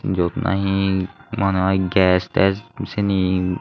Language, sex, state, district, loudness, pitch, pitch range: Chakma, male, Tripura, Unakoti, -20 LUFS, 95 Hz, 95-100 Hz